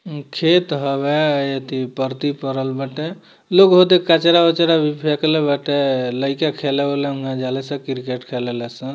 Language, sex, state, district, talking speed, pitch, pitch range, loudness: Bhojpuri, male, Bihar, Muzaffarpur, 145 wpm, 140 Hz, 135-155 Hz, -18 LUFS